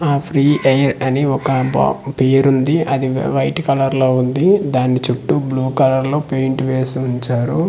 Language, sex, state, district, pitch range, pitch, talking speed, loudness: Telugu, male, Andhra Pradesh, Manyam, 130-140 Hz, 135 Hz, 155 wpm, -16 LUFS